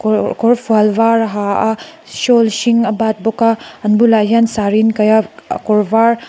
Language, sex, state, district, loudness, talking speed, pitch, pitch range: Mizo, female, Mizoram, Aizawl, -13 LUFS, 190 wpm, 225 Hz, 215-230 Hz